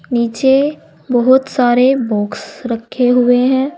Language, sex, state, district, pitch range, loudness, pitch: Hindi, female, Uttar Pradesh, Saharanpur, 240-265 Hz, -14 LUFS, 250 Hz